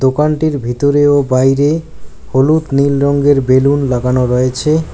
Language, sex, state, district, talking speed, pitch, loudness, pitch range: Bengali, male, West Bengal, Alipurduar, 120 wpm, 140 Hz, -12 LUFS, 130-145 Hz